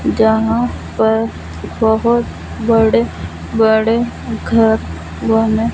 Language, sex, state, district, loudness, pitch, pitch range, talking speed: Hindi, female, Punjab, Fazilka, -15 LUFS, 225 Hz, 220-230 Hz, 75 wpm